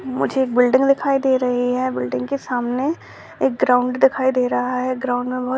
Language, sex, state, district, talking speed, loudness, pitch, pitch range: Hindi, female, Bihar, Jamui, 215 wpm, -19 LUFS, 255 Hz, 245-260 Hz